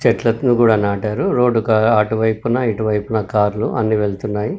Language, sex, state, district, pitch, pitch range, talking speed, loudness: Telugu, male, Telangana, Karimnagar, 110 Hz, 105-115 Hz, 130 wpm, -17 LUFS